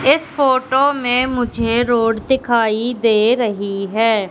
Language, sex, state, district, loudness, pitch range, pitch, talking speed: Hindi, female, Madhya Pradesh, Katni, -16 LUFS, 225-260 Hz, 235 Hz, 125 wpm